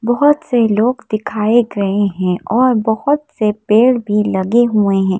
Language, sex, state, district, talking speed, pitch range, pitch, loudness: Hindi, female, Madhya Pradesh, Bhopal, 160 wpm, 205-240 Hz, 220 Hz, -14 LUFS